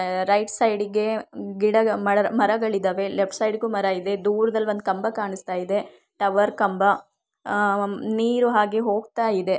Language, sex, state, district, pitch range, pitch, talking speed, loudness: Kannada, female, Karnataka, Shimoga, 200-220 Hz, 205 Hz, 140 wpm, -23 LUFS